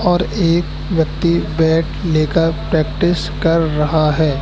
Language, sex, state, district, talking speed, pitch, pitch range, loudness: Hindi, male, Madhya Pradesh, Katni, 120 wpm, 165 Hz, 155-170 Hz, -16 LUFS